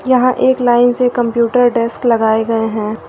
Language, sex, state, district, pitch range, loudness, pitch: Hindi, female, Uttar Pradesh, Lucknow, 230-250 Hz, -13 LUFS, 240 Hz